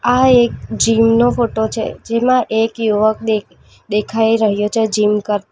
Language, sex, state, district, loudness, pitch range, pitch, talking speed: Gujarati, female, Gujarat, Valsad, -15 LUFS, 210-230 Hz, 225 Hz, 175 wpm